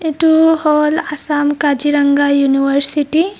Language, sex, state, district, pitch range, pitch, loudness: Assamese, female, Assam, Kamrup Metropolitan, 285-315 Hz, 295 Hz, -13 LUFS